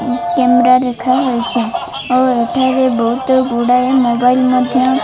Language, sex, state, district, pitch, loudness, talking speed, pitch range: Odia, female, Odisha, Malkangiri, 250 Hz, -13 LUFS, 120 wpm, 240-255 Hz